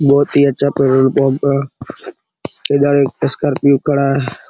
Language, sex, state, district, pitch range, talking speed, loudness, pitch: Hindi, male, Bihar, Araria, 135-140 Hz, 145 wpm, -14 LUFS, 140 Hz